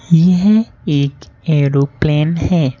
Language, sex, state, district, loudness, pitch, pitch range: Hindi, female, Madhya Pradesh, Bhopal, -14 LUFS, 150 Hz, 140-170 Hz